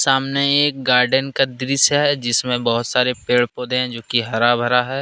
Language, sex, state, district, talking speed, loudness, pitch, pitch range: Hindi, male, Jharkhand, Ranchi, 205 wpm, -17 LUFS, 125 Hz, 120-135 Hz